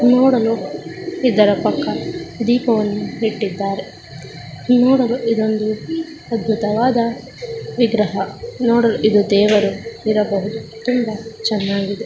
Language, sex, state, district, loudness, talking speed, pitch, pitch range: Kannada, female, Karnataka, Chamarajanagar, -18 LUFS, 70 wpm, 220 Hz, 205-240 Hz